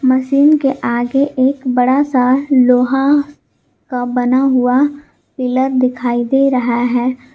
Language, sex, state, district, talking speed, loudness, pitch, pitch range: Hindi, female, Jharkhand, Garhwa, 120 wpm, -14 LUFS, 255 Hz, 250-270 Hz